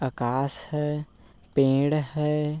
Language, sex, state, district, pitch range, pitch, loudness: Hindi, male, Chhattisgarh, Bilaspur, 130-150 Hz, 140 Hz, -26 LUFS